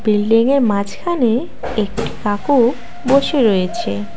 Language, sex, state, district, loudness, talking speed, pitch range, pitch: Bengali, female, West Bengal, Alipurduar, -17 LUFS, 85 wpm, 205-255 Hz, 230 Hz